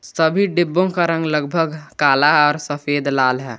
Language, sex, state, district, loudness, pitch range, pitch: Hindi, male, Jharkhand, Garhwa, -17 LUFS, 145-165 Hz, 150 Hz